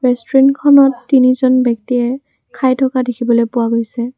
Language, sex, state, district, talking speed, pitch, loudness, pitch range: Assamese, female, Assam, Kamrup Metropolitan, 115 wpm, 255 Hz, -13 LUFS, 240-265 Hz